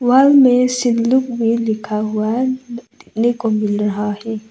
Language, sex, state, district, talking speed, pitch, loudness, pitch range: Hindi, female, Arunachal Pradesh, Lower Dibang Valley, 160 wpm, 235 Hz, -16 LUFS, 215-250 Hz